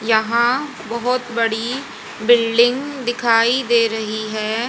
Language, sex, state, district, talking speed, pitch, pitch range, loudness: Hindi, female, Haryana, Jhajjar, 100 wpm, 235 Hz, 225-245 Hz, -18 LUFS